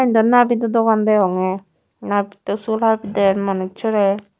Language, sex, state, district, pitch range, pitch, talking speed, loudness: Chakma, female, Tripura, Unakoti, 195-225 Hz, 205 Hz, 95 wpm, -18 LUFS